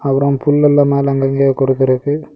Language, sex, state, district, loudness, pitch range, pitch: Tamil, male, Tamil Nadu, Kanyakumari, -13 LUFS, 135-145 Hz, 140 Hz